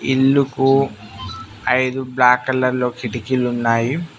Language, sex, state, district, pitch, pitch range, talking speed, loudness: Telugu, male, Telangana, Mahabubabad, 125 Hz, 120-130 Hz, 70 wpm, -18 LUFS